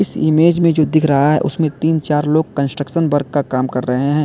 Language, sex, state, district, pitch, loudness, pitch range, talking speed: Hindi, male, Uttar Pradesh, Lalitpur, 150 Hz, -15 LUFS, 140-160 Hz, 255 wpm